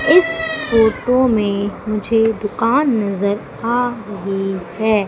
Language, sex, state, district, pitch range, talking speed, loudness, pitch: Hindi, female, Madhya Pradesh, Umaria, 205-250 Hz, 105 wpm, -17 LUFS, 225 Hz